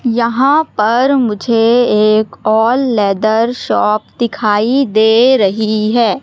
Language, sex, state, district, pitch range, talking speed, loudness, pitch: Hindi, female, Madhya Pradesh, Katni, 215-245 Hz, 105 wpm, -12 LUFS, 225 Hz